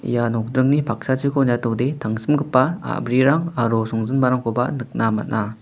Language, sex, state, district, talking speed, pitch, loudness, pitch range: Garo, male, Meghalaya, West Garo Hills, 105 wpm, 125 Hz, -20 LUFS, 115-135 Hz